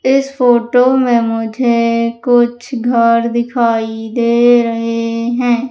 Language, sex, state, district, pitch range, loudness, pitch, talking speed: Hindi, female, Madhya Pradesh, Umaria, 230-245 Hz, -13 LUFS, 235 Hz, 105 wpm